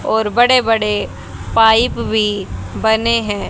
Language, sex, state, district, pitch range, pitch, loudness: Hindi, female, Haryana, Charkhi Dadri, 215-230 Hz, 220 Hz, -15 LUFS